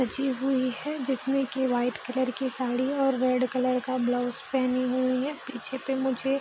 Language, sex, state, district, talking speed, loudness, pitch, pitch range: Hindi, female, Bihar, East Champaran, 195 wpm, -28 LUFS, 255 Hz, 255-270 Hz